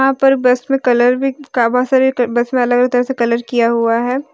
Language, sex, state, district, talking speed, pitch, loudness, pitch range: Hindi, female, Jharkhand, Deoghar, 250 wpm, 250 Hz, -14 LUFS, 240-265 Hz